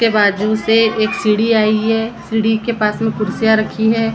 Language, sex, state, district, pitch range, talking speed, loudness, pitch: Hindi, female, Maharashtra, Gondia, 215-225 Hz, 200 wpm, -15 LUFS, 220 Hz